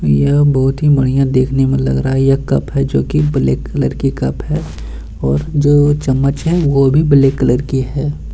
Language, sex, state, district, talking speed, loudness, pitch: Hindi, male, Bihar, Bhagalpur, 210 wpm, -14 LUFS, 135 Hz